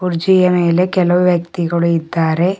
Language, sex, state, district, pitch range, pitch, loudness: Kannada, male, Karnataka, Bidar, 170-180 Hz, 175 Hz, -14 LUFS